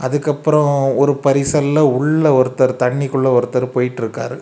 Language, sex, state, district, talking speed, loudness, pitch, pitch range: Tamil, male, Tamil Nadu, Kanyakumari, 110 wpm, -15 LUFS, 135 Hz, 130-145 Hz